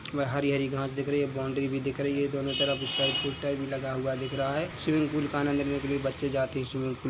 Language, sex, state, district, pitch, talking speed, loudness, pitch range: Hindi, male, Chhattisgarh, Bilaspur, 140 Hz, 295 wpm, -29 LUFS, 135-140 Hz